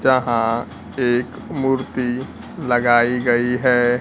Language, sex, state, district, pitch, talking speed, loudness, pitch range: Hindi, male, Bihar, Kaimur, 125 Hz, 90 wpm, -19 LUFS, 120-130 Hz